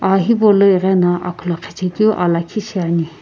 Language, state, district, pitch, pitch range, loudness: Sumi, Nagaland, Kohima, 180 Hz, 175-200 Hz, -16 LUFS